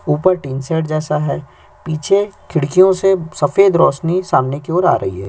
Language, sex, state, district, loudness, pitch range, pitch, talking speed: Hindi, male, Chhattisgarh, Sukma, -15 LUFS, 145-185 Hz, 160 Hz, 180 wpm